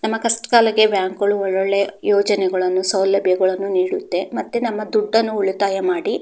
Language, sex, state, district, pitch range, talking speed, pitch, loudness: Kannada, female, Karnataka, Mysore, 195-230 Hz, 145 wpm, 205 Hz, -18 LUFS